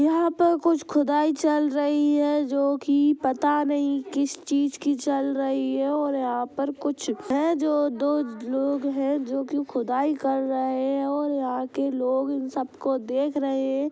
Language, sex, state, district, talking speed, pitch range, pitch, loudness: Bhojpuri, female, Bihar, Gopalganj, 180 wpm, 270-295 Hz, 280 Hz, -25 LUFS